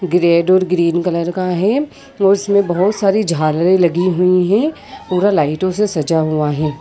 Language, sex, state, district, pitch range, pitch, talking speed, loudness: Hindi, female, Uttar Pradesh, Jyotiba Phule Nagar, 170-200 Hz, 185 Hz, 175 wpm, -15 LUFS